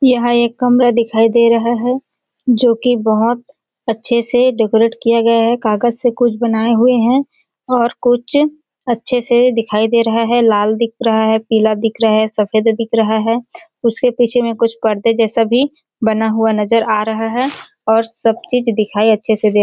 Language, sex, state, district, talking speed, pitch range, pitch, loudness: Hindi, female, Chhattisgarh, Balrampur, 195 wpm, 220-245 Hz, 230 Hz, -14 LUFS